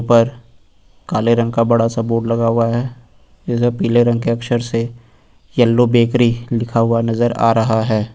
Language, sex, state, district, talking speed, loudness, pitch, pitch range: Hindi, male, Uttar Pradesh, Lucknow, 160 wpm, -16 LUFS, 115 Hz, 115-120 Hz